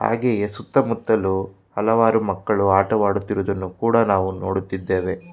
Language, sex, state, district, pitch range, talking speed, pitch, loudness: Kannada, male, Karnataka, Bangalore, 95-115 Hz, 100 wpm, 100 Hz, -21 LUFS